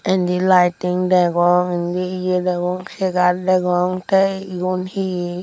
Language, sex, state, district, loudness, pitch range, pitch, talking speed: Chakma, female, Tripura, Unakoti, -18 LUFS, 180-185 Hz, 180 Hz, 145 wpm